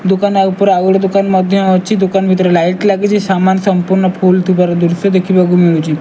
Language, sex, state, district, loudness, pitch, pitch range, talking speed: Odia, male, Odisha, Malkangiri, -11 LUFS, 190 Hz, 180-195 Hz, 190 wpm